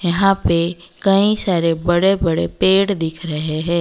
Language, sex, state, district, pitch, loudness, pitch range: Hindi, female, Odisha, Malkangiri, 175 Hz, -17 LUFS, 165-195 Hz